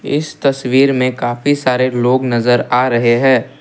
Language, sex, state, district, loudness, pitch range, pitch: Hindi, male, Assam, Kamrup Metropolitan, -14 LUFS, 125-135 Hz, 130 Hz